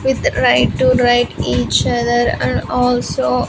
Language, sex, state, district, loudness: English, female, Andhra Pradesh, Sri Satya Sai, -15 LUFS